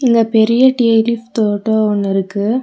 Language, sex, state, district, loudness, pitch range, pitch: Tamil, female, Tamil Nadu, Nilgiris, -14 LUFS, 210-235 Hz, 225 Hz